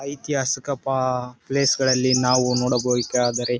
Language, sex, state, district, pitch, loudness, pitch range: Kannada, male, Karnataka, Bellary, 125 Hz, -21 LUFS, 125-135 Hz